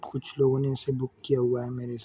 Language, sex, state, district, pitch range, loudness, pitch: Hindi, male, Jharkhand, Sahebganj, 125-135 Hz, -28 LUFS, 130 Hz